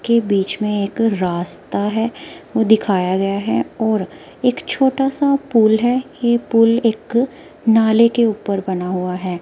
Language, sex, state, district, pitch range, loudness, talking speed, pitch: Hindi, female, Himachal Pradesh, Shimla, 200-240 Hz, -17 LUFS, 160 wpm, 225 Hz